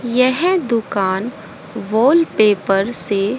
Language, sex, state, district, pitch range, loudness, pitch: Hindi, female, Haryana, Jhajjar, 200-255 Hz, -16 LUFS, 225 Hz